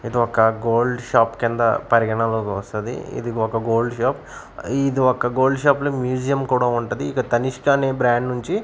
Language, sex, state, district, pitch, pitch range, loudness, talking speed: Telugu, male, Andhra Pradesh, Manyam, 120 Hz, 115-130 Hz, -20 LUFS, 165 wpm